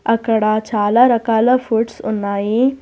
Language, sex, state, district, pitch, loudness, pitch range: Telugu, female, Telangana, Hyderabad, 225 Hz, -16 LUFS, 215-240 Hz